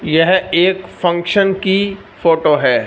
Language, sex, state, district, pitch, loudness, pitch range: Hindi, male, Punjab, Fazilka, 185 Hz, -14 LUFS, 170-195 Hz